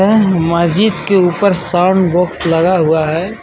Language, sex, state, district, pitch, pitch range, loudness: Hindi, male, Jharkhand, Ranchi, 180 Hz, 170-195 Hz, -12 LUFS